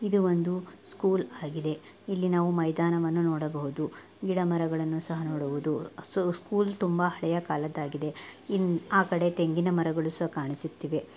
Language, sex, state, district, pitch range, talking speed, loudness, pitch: Kannada, female, Karnataka, Dakshina Kannada, 155-180 Hz, 135 wpm, -29 LUFS, 170 Hz